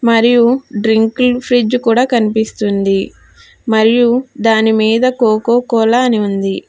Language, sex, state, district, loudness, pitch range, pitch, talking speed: Telugu, female, Telangana, Hyderabad, -12 LUFS, 220-245 Hz, 230 Hz, 100 wpm